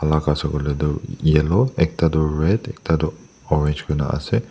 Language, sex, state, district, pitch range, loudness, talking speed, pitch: Nagamese, male, Nagaland, Dimapur, 75-80 Hz, -20 LUFS, 175 wpm, 75 Hz